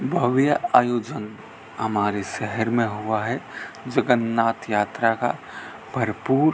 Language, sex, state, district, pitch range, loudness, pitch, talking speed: Hindi, male, Rajasthan, Bikaner, 110-120 Hz, -23 LUFS, 115 Hz, 110 wpm